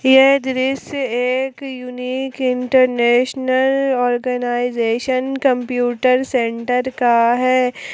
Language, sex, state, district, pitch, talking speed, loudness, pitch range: Hindi, female, Jharkhand, Palamu, 255 Hz, 75 wpm, -17 LUFS, 245-265 Hz